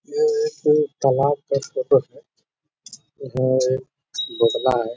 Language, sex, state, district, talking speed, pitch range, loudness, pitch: Hindi, male, Bihar, Bhagalpur, 120 wpm, 130-180 Hz, -21 LUFS, 140 Hz